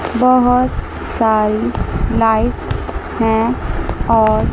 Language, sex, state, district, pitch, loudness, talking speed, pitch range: Hindi, female, Chandigarh, Chandigarh, 225 Hz, -16 LUFS, 65 wpm, 220-245 Hz